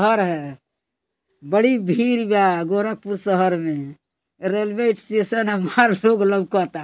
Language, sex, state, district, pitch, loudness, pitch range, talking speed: Bhojpuri, female, Uttar Pradesh, Deoria, 200 Hz, -20 LUFS, 180-220 Hz, 125 wpm